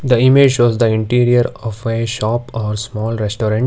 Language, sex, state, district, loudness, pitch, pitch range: English, male, Karnataka, Bangalore, -15 LUFS, 115 Hz, 110-120 Hz